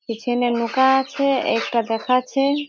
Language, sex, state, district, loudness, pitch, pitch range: Bengali, female, West Bengal, Jhargram, -20 LUFS, 255 Hz, 235-270 Hz